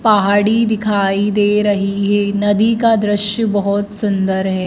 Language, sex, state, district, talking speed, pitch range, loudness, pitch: Hindi, female, Madhya Pradesh, Dhar, 140 wpm, 200-215 Hz, -15 LUFS, 205 Hz